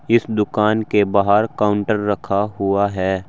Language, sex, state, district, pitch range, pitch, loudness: Hindi, male, Uttar Pradesh, Saharanpur, 100-110 Hz, 105 Hz, -18 LUFS